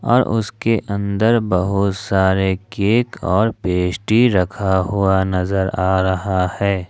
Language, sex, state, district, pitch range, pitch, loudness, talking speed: Hindi, male, Jharkhand, Ranchi, 95-110 Hz, 95 Hz, -18 LUFS, 120 wpm